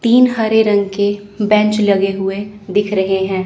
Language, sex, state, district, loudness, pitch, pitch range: Hindi, female, Chandigarh, Chandigarh, -15 LUFS, 205 Hz, 195-210 Hz